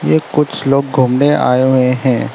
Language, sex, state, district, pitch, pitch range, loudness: Hindi, male, Arunachal Pradesh, Lower Dibang Valley, 130 Hz, 125-140 Hz, -13 LUFS